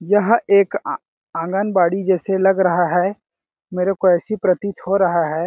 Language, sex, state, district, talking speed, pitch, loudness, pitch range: Hindi, male, Chhattisgarh, Balrampur, 165 wpm, 190 Hz, -18 LUFS, 175-200 Hz